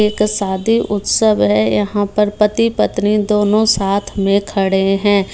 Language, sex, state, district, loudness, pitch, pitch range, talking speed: Hindi, female, Bihar, Muzaffarpur, -15 LUFS, 205 Hz, 195-210 Hz, 135 wpm